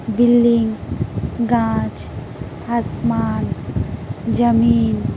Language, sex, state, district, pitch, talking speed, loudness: Hindi, female, Uttar Pradesh, Hamirpur, 120 Hz, 60 wpm, -18 LUFS